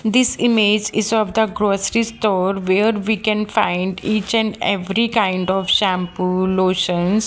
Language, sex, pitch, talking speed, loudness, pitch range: English, female, 210 Hz, 150 wpm, -18 LUFS, 185-220 Hz